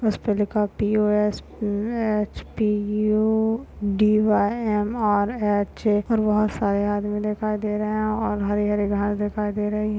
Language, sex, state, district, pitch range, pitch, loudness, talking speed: Hindi, female, Maharashtra, Solapur, 205-215 Hz, 210 Hz, -23 LUFS, 115 wpm